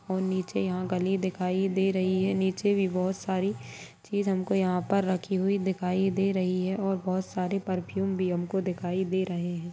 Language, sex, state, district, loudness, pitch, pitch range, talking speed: Hindi, female, Uttar Pradesh, Ghazipur, -28 LUFS, 190 Hz, 185-195 Hz, 195 wpm